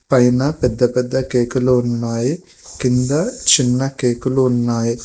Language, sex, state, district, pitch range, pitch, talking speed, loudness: Telugu, male, Telangana, Hyderabad, 120-135 Hz, 125 Hz, 105 wpm, -17 LUFS